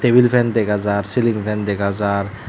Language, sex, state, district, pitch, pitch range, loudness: Chakma, male, Tripura, Dhalai, 105 Hz, 100-120 Hz, -18 LUFS